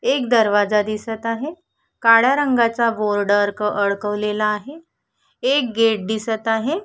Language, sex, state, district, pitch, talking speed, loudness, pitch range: Marathi, female, Maharashtra, Solapur, 225 Hz, 125 wpm, -19 LUFS, 210-255 Hz